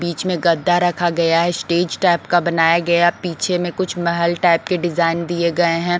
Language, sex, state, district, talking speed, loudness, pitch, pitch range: Hindi, female, Bihar, Patna, 220 wpm, -17 LUFS, 175 Hz, 170-175 Hz